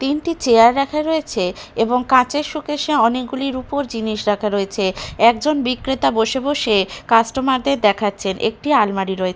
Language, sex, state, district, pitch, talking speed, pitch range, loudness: Bengali, female, Bihar, Katihar, 250 Hz, 150 wpm, 210-280 Hz, -18 LUFS